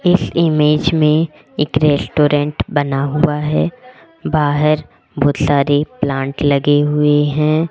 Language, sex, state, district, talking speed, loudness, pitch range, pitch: Hindi, female, Rajasthan, Jaipur, 115 wpm, -15 LUFS, 145-155 Hz, 150 Hz